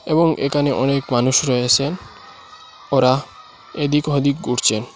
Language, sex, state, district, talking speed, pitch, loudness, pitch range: Bengali, male, Assam, Hailakandi, 110 wpm, 140 Hz, -18 LUFS, 125-145 Hz